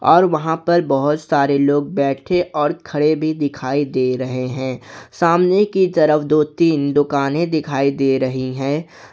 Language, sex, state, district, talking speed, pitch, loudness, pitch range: Hindi, male, Jharkhand, Garhwa, 160 wpm, 145 Hz, -17 LUFS, 135-160 Hz